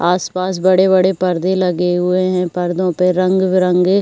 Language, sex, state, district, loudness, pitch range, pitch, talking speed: Hindi, female, Uttar Pradesh, Jyotiba Phule Nagar, -15 LUFS, 180-185 Hz, 185 Hz, 165 wpm